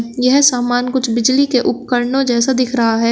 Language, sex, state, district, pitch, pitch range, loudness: Hindi, female, Uttar Pradesh, Shamli, 250 Hz, 240-260 Hz, -14 LUFS